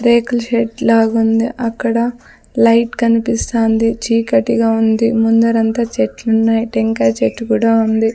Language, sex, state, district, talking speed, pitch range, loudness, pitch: Telugu, female, Andhra Pradesh, Sri Satya Sai, 105 wpm, 225-230 Hz, -14 LUFS, 230 Hz